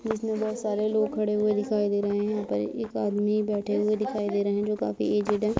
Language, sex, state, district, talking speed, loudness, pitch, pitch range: Hindi, female, Uttar Pradesh, Deoria, 255 wpm, -27 LUFS, 210 Hz, 205-215 Hz